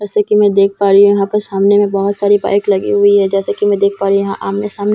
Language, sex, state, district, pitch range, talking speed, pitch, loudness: Hindi, female, Bihar, Katihar, 195-205 Hz, 325 wpm, 200 Hz, -12 LUFS